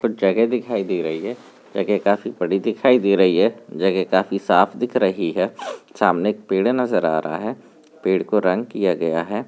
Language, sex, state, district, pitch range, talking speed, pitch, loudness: Hindi, male, Bihar, Darbhanga, 95-110 Hz, 205 wpm, 100 Hz, -20 LUFS